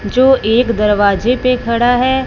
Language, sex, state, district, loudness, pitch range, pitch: Hindi, female, Punjab, Fazilka, -13 LUFS, 215-255 Hz, 245 Hz